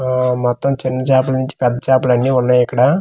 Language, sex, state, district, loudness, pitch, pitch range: Telugu, male, Andhra Pradesh, Manyam, -15 LUFS, 130 Hz, 125-130 Hz